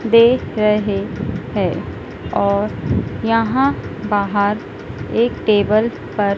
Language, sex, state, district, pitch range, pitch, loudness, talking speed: Hindi, female, Madhya Pradesh, Dhar, 205-230 Hz, 215 Hz, -18 LUFS, 85 wpm